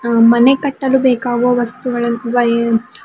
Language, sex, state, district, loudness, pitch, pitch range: Kannada, female, Karnataka, Bidar, -14 LUFS, 240 Hz, 235-255 Hz